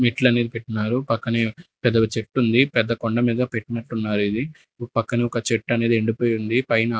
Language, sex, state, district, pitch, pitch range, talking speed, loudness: Telugu, male, Andhra Pradesh, Sri Satya Sai, 115 Hz, 115-120 Hz, 155 wpm, -22 LUFS